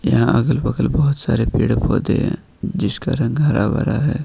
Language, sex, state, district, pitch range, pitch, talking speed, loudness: Hindi, male, Jharkhand, Ranchi, 120-145 Hz, 130 Hz, 185 wpm, -18 LUFS